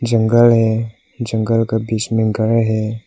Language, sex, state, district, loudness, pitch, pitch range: Hindi, male, Nagaland, Kohima, -16 LUFS, 110 Hz, 110-115 Hz